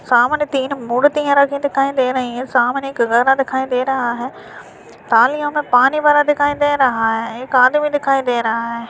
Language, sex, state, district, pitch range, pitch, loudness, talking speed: Hindi, male, Uttarakhand, Uttarkashi, 240-285 Hz, 265 Hz, -16 LUFS, 195 wpm